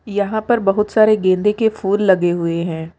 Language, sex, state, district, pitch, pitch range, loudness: Hindi, female, Uttar Pradesh, Lucknow, 205 Hz, 175-215 Hz, -16 LUFS